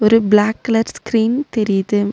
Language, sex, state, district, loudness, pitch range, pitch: Tamil, female, Tamil Nadu, Nilgiris, -16 LUFS, 205-225 Hz, 220 Hz